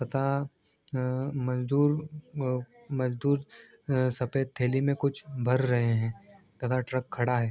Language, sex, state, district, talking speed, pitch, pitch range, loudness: Hindi, male, Bihar, Begusarai, 110 wpm, 130 Hz, 125-140 Hz, -29 LUFS